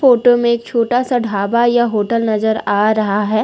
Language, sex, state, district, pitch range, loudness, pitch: Hindi, female, Uttar Pradesh, Lalitpur, 215-240 Hz, -15 LUFS, 230 Hz